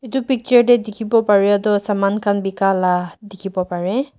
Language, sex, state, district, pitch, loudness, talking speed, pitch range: Nagamese, female, Nagaland, Dimapur, 205 Hz, -17 LUFS, 200 wpm, 195-235 Hz